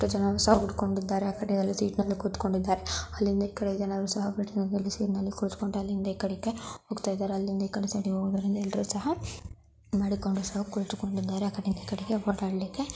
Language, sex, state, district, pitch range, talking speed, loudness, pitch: Kannada, female, Karnataka, Belgaum, 195-205 Hz, 145 wpm, -30 LUFS, 200 Hz